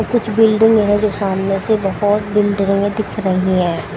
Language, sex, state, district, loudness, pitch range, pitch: Hindi, female, Haryana, Jhajjar, -15 LUFS, 195-215 Hz, 205 Hz